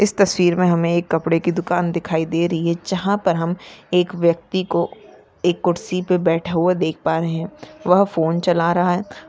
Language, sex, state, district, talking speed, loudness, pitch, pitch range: Hindi, female, Maharashtra, Sindhudurg, 200 wpm, -19 LUFS, 175 Hz, 165-180 Hz